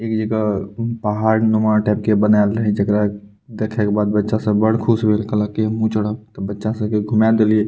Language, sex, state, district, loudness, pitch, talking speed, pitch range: Maithili, male, Bihar, Purnia, -18 LUFS, 110 Hz, 210 wpm, 105-110 Hz